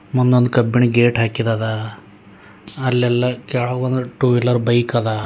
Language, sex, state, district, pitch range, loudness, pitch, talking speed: Kannada, male, Karnataka, Bidar, 110-125 Hz, -17 LUFS, 120 Hz, 115 wpm